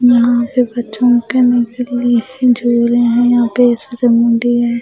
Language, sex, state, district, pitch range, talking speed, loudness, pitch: Hindi, female, Maharashtra, Mumbai Suburban, 235-245 Hz, 125 wpm, -13 LUFS, 240 Hz